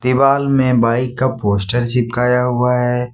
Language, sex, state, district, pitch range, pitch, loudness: Hindi, male, Jharkhand, Ranchi, 120-130 Hz, 125 Hz, -16 LUFS